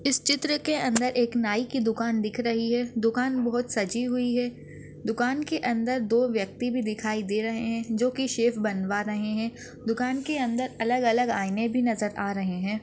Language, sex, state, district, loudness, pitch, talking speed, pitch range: Hindi, female, Maharashtra, Chandrapur, -27 LUFS, 235 Hz, 200 wpm, 215-250 Hz